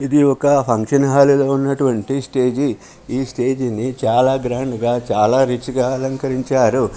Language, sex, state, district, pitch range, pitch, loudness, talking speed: Telugu, male, Telangana, Karimnagar, 125-140 Hz, 130 Hz, -17 LUFS, 145 wpm